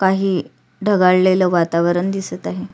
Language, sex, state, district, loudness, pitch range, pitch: Marathi, female, Maharashtra, Sindhudurg, -17 LUFS, 170-190 Hz, 185 Hz